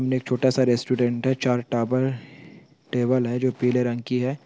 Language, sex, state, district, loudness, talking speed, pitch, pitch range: Hindi, male, Bihar, Sitamarhi, -23 LUFS, 175 wpm, 125 Hz, 125-130 Hz